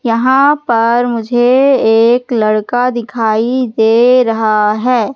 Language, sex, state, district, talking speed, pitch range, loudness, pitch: Hindi, female, Madhya Pradesh, Katni, 105 wpm, 225-250 Hz, -11 LUFS, 240 Hz